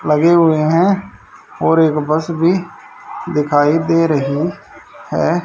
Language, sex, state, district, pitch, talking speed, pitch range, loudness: Hindi, male, Haryana, Charkhi Dadri, 165 Hz, 120 wpm, 150-175 Hz, -15 LUFS